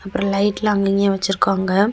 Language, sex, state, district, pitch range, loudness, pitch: Tamil, female, Tamil Nadu, Kanyakumari, 195-205 Hz, -18 LUFS, 200 Hz